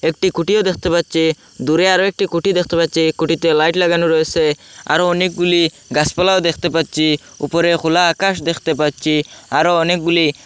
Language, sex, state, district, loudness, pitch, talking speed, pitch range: Bengali, male, Assam, Hailakandi, -16 LUFS, 170 Hz, 155 wpm, 160-175 Hz